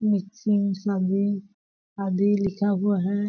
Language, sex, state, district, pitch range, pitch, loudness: Hindi, female, Chhattisgarh, Balrampur, 195-205 Hz, 200 Hz, -25 LUFS